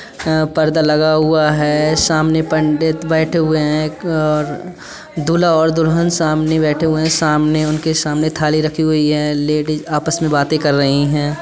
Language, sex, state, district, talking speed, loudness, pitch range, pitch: Hindi, female, Uttar Pradesh, Budaun, 170 wpm, -15 LUFS, 150-160 Hz, 155 Hz